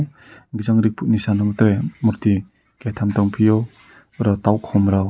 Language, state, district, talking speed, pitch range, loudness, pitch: Kokborok, Tripura, Dhalai, 140 wpm, 105-110 Hz, -19 LUFS, 110 Hz